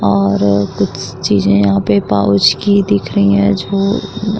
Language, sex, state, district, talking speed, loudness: Hindi, female, Bihar, Vaishali, 165 wpm, -13 LUFS